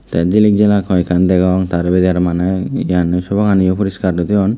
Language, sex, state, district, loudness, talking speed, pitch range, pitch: Chakma, male, Tripura, Dhalai, -14 LUFS, 170 wpm, 90-100 Hz, 95 Hz